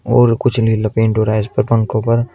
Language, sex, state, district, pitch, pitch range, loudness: Hindi, male, Uttar Pradesh, Shamli, 115 Hz, 110-120 Hz, -15 LUFS